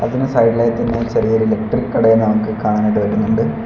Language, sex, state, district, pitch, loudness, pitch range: Malayalam, male, Kerala, Kollam, 110 Hz, -16 LUFS, 110-115 Hz